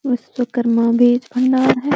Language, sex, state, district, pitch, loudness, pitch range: Hindi, female, Uttar Pradesh, Deoria, 245 Hz, -16 LUFS, 240-260 Hz